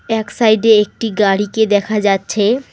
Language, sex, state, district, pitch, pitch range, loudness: Bengali, female, West Bengal, Alipurduar, 215 Hz, 205-220 Hz, -14 LUFS